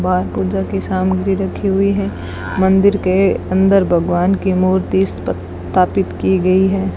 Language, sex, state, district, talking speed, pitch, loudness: Hindi, female, Rajasthan, Bikaner, 145 wpm, 185 Hz, -16 LUFS